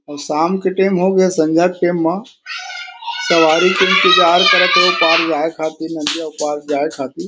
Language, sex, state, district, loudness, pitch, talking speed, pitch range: Chhattisgarhi, male, Chhattisgarh, Korba, -14 LUFS, 165 Hz, 190 wpm, 155-190 Hz